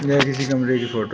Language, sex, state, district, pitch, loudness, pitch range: Hindi, male, Uttar Pradesh, Shamli, 135 Hz, -20 LUFS, 125-140 Hz